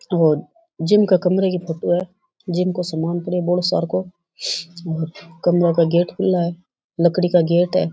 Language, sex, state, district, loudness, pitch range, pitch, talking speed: Rajasthani, female, Rajasthan, Churu, -19 LUFS, 170-180 Hz, 175 Hz, 175 wpm